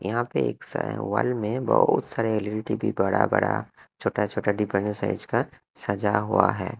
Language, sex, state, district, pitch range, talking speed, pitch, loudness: Hindi, male, Punjab, Kapurthala, 105-115 Hz, 130 wpm, 105 Hz, -25 LUFS